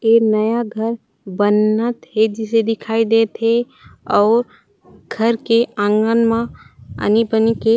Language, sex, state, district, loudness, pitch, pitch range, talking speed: Chhattisgarhi, female, Chhattisgarh, Raigarh, -17 LUFS, 225 Hz, 220-230 Hz, 130 wpm